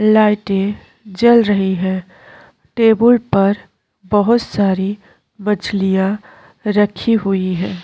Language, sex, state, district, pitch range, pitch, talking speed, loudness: Hindi, female, Uttarakhand, Tehri Garhwal, 190-215 Hz, 205 Hz, 90 wpm, -16 LUFS